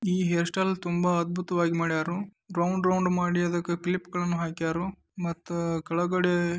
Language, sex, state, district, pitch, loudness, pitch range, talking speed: Kannada, male, Karnataka, Dharwad, 175 Hz, -28 LUFS, 170-180 Hz, 135 wpm